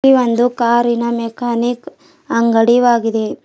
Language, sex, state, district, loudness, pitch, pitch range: Kannada, female, Karnataka, Bidar, -15 LUFS, 235 Hz, 230-245 Hz